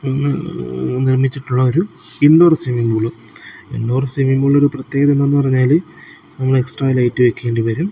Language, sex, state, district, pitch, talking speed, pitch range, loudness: Malayalam, male, Kerala, Kozhikode, 130 Hz, 130 wpm, 125-140 Hz, -16 LUFS